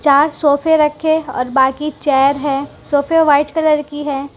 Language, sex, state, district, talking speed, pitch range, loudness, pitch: Hindi, female, Gujarat, Valsad, 165 wpm, 280-305 Hz, -15 LUFS, 290 Hz